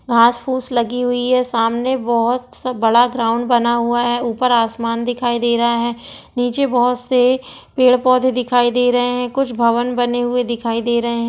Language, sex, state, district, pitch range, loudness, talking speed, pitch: Hindi, female, Chhattisgarh, Bilaspur, 235-250 Hz, -16 LUFS, 195 wpm, 245 Hz